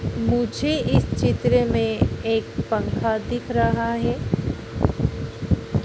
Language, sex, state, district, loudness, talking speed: Hindi, female, Madhya Pradesh, Dhar, -23 LUFS, 90 wpm